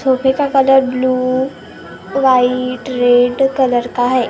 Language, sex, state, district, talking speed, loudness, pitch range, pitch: Hindi, female, Maharashtra, Gondia, 125 wpm, -14 LUFS, 245-265 Hz, 255 Hz